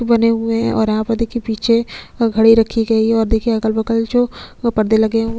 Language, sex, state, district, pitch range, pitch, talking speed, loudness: Hindi, female, Chhattisgarh, Sukma, 220-230 Hz, 225 Hz, 210 wpm, -16 LUFS